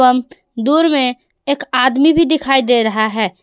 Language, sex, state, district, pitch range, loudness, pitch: Hindi, female, Jharkhand, Palamu, 240-285 Hz, -14 LUFS, 255 Hz